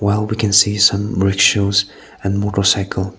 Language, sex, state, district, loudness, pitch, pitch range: English, male, Nagaland, Kohima, -15 LUFS, 100 Hz, 100-105 Hz